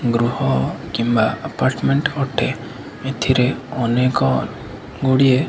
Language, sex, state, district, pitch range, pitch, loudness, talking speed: Odia, male, Odisha, Khordha, 105-130 Hz, 120 Hz, -19 LUFS, 85 wpm